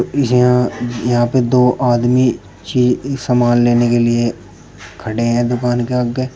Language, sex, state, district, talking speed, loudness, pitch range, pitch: Hindi, male, Uttar Pradesh, Shamli, 140 wpm, -15 LUFS, 120-125 Hz, 120 Hz